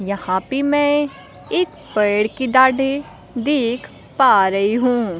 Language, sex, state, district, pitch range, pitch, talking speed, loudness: Hindi, female, Bihar, Kaimur, 205-275 Hz, 250 Hz, 125 wpm, -18 LUFS